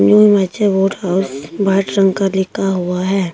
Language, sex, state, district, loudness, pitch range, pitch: Hindi, female, Himachal Pradesh, Shimla, -15 LUFS, 180-195 Hz, 195 Hz